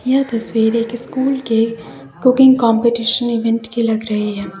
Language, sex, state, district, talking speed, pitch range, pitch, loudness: Hindi, female, Uttar Pradesh, Lucknow, 155 wpm, 225-240 Hz, 230 Hz, -15 LUFS